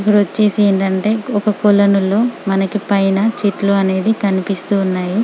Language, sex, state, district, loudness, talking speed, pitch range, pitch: Telugu, female, Telangana, Karimnagar, -15 LUFS, 125 wpm, 195-210 Hz, 200 Hz